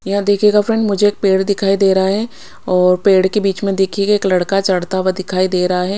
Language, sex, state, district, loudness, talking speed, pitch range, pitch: Hindi, female, Odisha, Khordha, -15 LUFS, 240 wpm, 185-205 Hz, 195 Hz